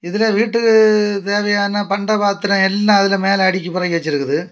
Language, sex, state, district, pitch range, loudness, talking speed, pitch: Tamil, male, Tamil Nadu, Kanyakumari, 190-210 Hz, -15 LUFS, 145 wpm, 200 Hz